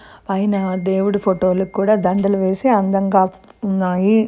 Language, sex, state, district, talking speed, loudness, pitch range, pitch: Telugu, female, Andhra Pradesh, Srikakulam, 110 wpm, -18 LUFS, 190-200 Hz, 195 Hz